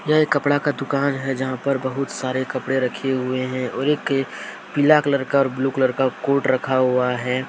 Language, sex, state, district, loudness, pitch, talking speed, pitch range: Hindi, male, Jharkhand, Deoghar, -21 LUFS, 135 Hz, 210 wpm, 130-140 Hz